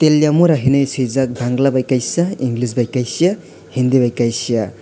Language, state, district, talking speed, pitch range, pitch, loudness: Kokborok, Tripura, West Tripura, 150 wpm, 120-150 Hz, 130 Hz, -16 LUFS